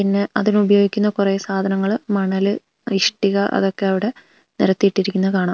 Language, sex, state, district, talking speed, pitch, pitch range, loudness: Malayalam, female, Kerala, Wayanad, 120 wpm, 200 Hz, 195-205 Hz, -19 LUFS